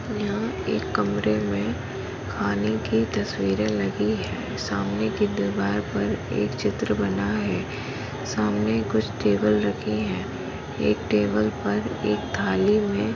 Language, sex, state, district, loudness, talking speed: Marathi, female, Maharashtra, Sindhudurg, -25 LUFS, 130 wpm